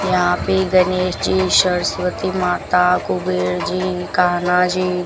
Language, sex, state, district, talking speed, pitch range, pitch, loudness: Hindi, female, Rajasthan, Bikaner, 105 wpm, 175-185 Hz, 180 Hz, -17 LUFS